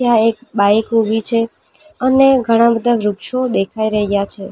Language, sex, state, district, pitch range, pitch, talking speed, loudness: Gujarati, female, Gujarat, Valsad, 210-240 Hz, 230 Hz, 160 wpm, -15 LUFS